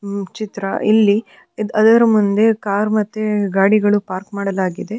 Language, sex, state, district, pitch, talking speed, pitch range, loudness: Kannada, female, Karnataka, Dharwad, 205 Hz, 110 wpm, 200-215 Hz, -16 LUFS